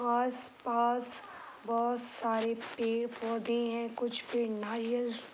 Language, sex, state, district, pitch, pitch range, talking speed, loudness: Hindi, female, Uttar Pradesh, Hamirpur, 235 Hz, 230-240 Hz, 125 wpm, -34 LUFS